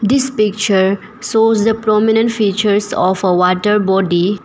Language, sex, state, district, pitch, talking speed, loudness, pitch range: English, female, Arunachal Pradesh, Papum Pare, 210 Hz, 135 wpm, -14 LUFS, 190-220 Hz